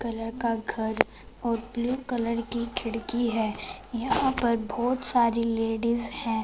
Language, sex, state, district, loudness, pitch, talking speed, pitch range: Hindi, female, Punjab, Fazilka, -28 LUFS, 235 Hz, 140 wpm, 225-245 Hz